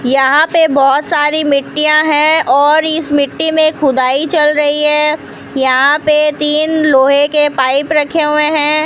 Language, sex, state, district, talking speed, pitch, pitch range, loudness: Hindi, female, Rajasthan, Bikaner, 155 wpm, 300 Hz, 280-310 Hz, -10 LUFS